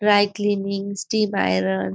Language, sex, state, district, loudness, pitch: Hindi, female, Maharashtra, Nagpur, -21 LUFS, 200 Hz